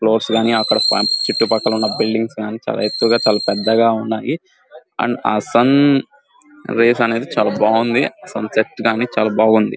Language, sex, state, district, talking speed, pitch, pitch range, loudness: Telugu, male, Andhra Pradesh, Guntur, 135 wpm, 115 Hz, 110-120 Hz, -16 LUFS